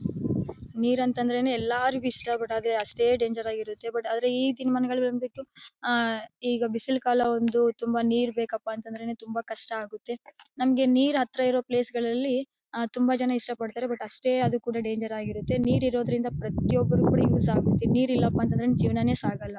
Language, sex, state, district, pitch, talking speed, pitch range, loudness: Kannada, female, Karnataka, Bellary, 240 Hz, 155 wpm, 230-250 Hz, -26 LUFS